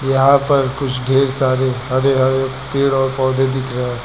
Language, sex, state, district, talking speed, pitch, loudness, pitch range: Hindi, male, Uttar Pradesh, Lucknow, 190 wpm, 130 Hz, -16 LUFS, 130-135 Hz